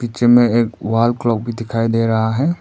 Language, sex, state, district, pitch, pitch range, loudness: Hindi, male, Arunachal Pradesh, Papum Pare, 115 Hz, 115-120 Hz, -16 LUFS